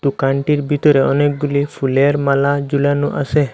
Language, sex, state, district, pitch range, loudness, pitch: Bengali, male, Assam, Hailakandi, 140-145 Hz, -16 LUFS, 145 Hz